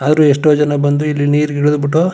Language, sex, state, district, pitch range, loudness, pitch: Kannada, male, Karnataka, Chamarajanagar, 145-150 Hz, -13 LUFS, 150 Hz